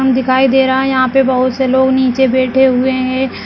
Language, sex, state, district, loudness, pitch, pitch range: Kumaoni, female, Uttarakhand, Uttarkashi, -12 LUFS, 260 Hz, 255-265 Hz